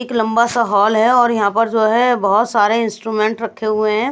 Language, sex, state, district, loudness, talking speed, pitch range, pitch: Hindi, female, Bihar, Patna, -15 LUFS, 235 wpm, 215-235 Hz, 225 Hz